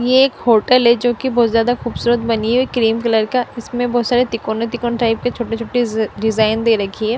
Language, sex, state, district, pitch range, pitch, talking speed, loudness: Hindi, female, Punjab, Fazilka, 225-245 Hz, 235 Hz, 235 wpm, -16 LUFS